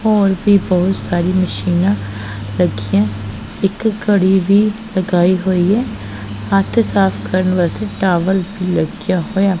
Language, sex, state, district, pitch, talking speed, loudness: Punjabi, female, Punjab, Pathankot, 185 Hz, 125 wpm, -16 LUFS